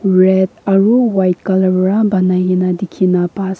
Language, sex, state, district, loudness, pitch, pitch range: Nagamese, female, Nagaland, Kohima, -13 LUFS, 190 Hz, 185-195 Hz